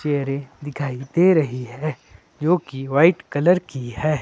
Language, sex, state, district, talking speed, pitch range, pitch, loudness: Hindi, male, Himachal Pradesh, Shimla, 140 wpm, 135-160 Hz, 145 Hz, -21 LUFS